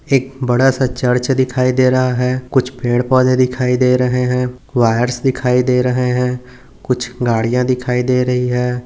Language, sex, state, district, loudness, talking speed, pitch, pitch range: Hindi, male, Maharashtra, Nagpur, -15 LUFS, 175 wpm, 125 Hz, 125-130 Hz